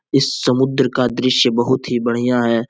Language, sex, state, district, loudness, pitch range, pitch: Hindi, male, Uttar Pradesh, Etah, -16 LUFS, 120-130 Hz, 125 Hz